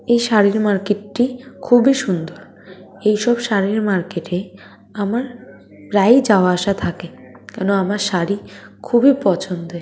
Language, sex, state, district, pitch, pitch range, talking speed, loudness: Bengali, female, West Bengal, North 24 Parganas, 205 Hz, 185-235 Hz, 130 wpm, -17 LUFS